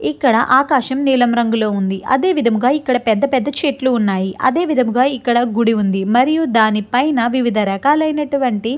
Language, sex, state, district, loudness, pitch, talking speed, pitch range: Telugu, female, Andhra Pradesh, Chittoor, -15 LUFS, 250 Hz, 145 wpm, 225-275 Hz